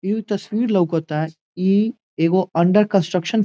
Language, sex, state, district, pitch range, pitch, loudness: Bhojpuri, male, Bihar, Saran, 170-210 Hz, 190 Hz, -19 LUFS